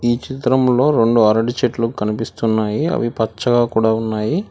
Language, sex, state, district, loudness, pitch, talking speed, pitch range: Telugu, male, Telangana, Hyderabad, -17 LUFS, 115 Hz, 135 wpm, 110-125 Hz